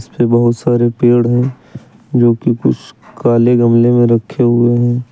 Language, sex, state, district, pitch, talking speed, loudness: Hindi, male, Uttar Pradesh, Lucknow, 120 Hz, 140 wpm, -12 LUFS